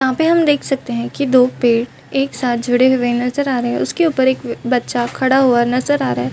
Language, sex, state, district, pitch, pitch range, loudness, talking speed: Hindi, female, Chhattisgarh, Balrampur, 255 Hz, 240-270 Hz, -16 LUFS, 265 wpm